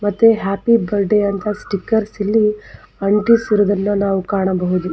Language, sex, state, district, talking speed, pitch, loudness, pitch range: Kannada, female, Karnataka, Belgaum, 110 wpm, 205 Hz, -16 LUFS, 195-215 Hz